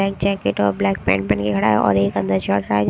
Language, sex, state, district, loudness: Hindi, female, Haryana, Rohtak, -19 LUFS